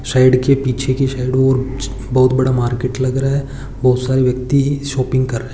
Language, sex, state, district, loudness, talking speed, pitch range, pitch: Hindi, male, Rajasthan, Churu, -16 LUFS, 205 wpm, 125-135 Hz, 130 Hz